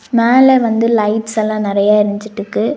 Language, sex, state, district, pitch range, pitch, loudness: Tamil, female, Tamil Nadu, Nilgiris, 210-230 Hz, 220 Hz, -13 LUFS